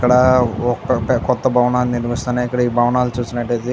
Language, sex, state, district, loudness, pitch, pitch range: Telugu, male, Andhra Pradesh, Chittoor, -17 LUFS, 125 Hz, 120-125 Hz